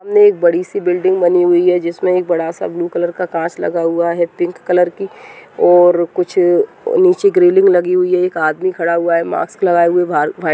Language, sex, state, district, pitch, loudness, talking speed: Hindi, female, Bihar, Saharsa, 180 Hz, -14 LUFS, 215 wpm